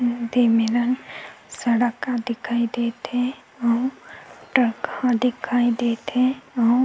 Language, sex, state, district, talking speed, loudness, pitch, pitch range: Chhattisgarhi, female, Chhattisgarh, Sukma, 120 wpm, -22 LUFS, 240 Hz, 235-250 Hz